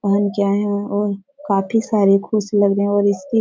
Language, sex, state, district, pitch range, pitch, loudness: Hindi, female, Bihar, Jahanabad, 200-210 Hz, 205 Hz, -18 LUFS